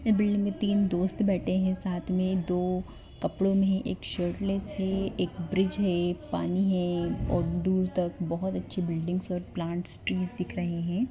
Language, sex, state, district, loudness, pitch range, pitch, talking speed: Hindi, female, West Bengal, Kolkata, -29 LUFS, 175-195 Hz, 185 Hz, 170 wpm